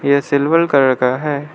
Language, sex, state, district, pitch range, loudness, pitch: Hindi, male, Arunachal Pradesh, Lower Dibang Valley, 135-150 Hz, -15 LUFS, 140 Hz